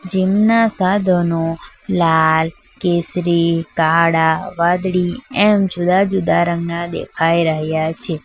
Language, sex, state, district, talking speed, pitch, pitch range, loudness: Gujarati, female, Gujarat, Valsad, 100 wpm, 170 Hz, 165-185 Hz, -16 LUFS